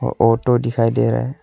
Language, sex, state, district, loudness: Hindi, male, Arunachal Pradesh, Longding, -17 LUFS